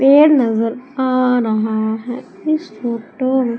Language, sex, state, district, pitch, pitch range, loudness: Hindi, female, Madhya Pradesh, Umaria, 250 Hz, 225-265 Hz, -17 LUFS